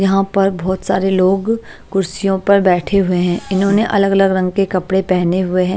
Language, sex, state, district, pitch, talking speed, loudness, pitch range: Hindi, female, Chhattisgarh, Raipur, 195 Hz, 195 wpm, -15 LUFS, 185-195 Hz